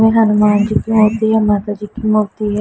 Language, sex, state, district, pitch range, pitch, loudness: Hindi, female, Punjab, Pathankot, 210-220 Hz, 215 Hz, -14 LUFS